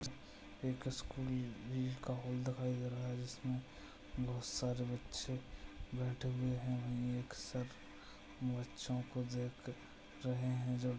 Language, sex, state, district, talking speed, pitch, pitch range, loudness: Hindi, male, Bihar, Madhepura, 125 wpm, 125 Hz, 120-125 Hz, -43 LUFS